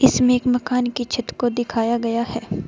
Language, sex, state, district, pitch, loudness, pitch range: Hindi, female, Uttar Pradesh, Saharanpur, 240 Hz, -21 LUFS, 235-250 Hz